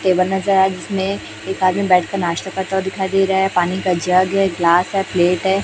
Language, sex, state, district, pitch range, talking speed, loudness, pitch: Hindi, female, Chhattisgarh, Raipur, 180-195 Hz, 210 wpm, -17 LUFS, 190 Hz